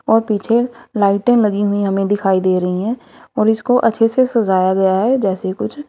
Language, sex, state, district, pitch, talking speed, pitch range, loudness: Hindi, female, Haryana, Rohtak, 210 Hz, 195 wpm, 195-235 Hz, -16 LUFS